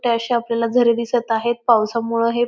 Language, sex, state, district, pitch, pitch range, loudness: Marathi, female, Maharashtra, Pune, 235 Hz, 230-240 Hz, -19 LUFS